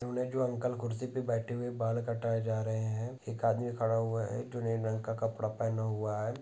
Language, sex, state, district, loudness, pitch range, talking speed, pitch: Hindi, male, Goa, North and South Goa, -34 LUFS, 110-120 Hz, 225 wpm, 115 Hz